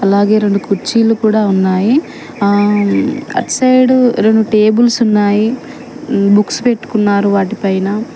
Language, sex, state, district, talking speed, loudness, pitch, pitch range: Telugu, female, Telangana, Mahabubabad, 105 wpm, -12 LUFS, 215 Hz, 200-240 Hz